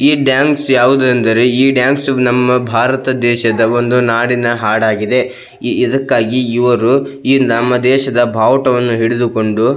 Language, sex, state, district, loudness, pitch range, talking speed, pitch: Kannada, male, Karnataka, Belgaum, -12 LUFS, 115-130 Hz, 125 wpm, 125 Hz